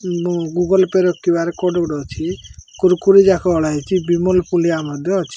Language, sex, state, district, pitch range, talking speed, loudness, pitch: Odia, male, Odisha, Malkangiri, 170-185 Hz, 155 wpm, -16 LUFS, 175 Hz